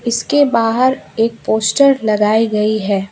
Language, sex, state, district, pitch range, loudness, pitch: Hindi, female, West Bengal, Alipurduar, 215-255 Hz, -14 LUFS, 225 Hz